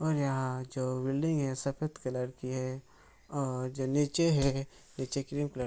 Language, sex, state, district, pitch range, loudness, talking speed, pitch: Hindi, male, Bihar, Araria, 130-145 Hz, -33 LUFS, 180 wpm, 135 Hz